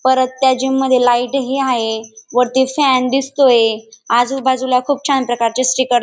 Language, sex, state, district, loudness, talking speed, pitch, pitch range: Marathi, female, Maharashtra, Dhule, -15 LUFS, 160 wpm, 255 Hz, 240-265 Hz